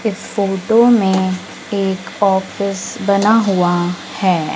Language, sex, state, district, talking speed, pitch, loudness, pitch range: Hindi, female, Madhya Pradesh, Dhar, 105 wpm, 195 Hz, -16 LUFS, 185-200 Hz